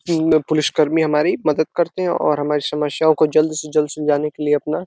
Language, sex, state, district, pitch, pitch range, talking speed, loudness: Hindi, male, Uttar Pradesh, Deoria, 155 Hz, 150-155 Hz, 245 wpm, -18 LUFS